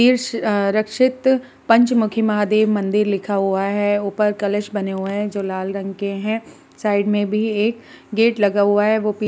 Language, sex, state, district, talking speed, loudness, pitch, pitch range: Hindi, female, Uttar Pradesh, Muzaffarnagar, 200 wpm, -19 LUFS, 210 Hz, 200-220 Hz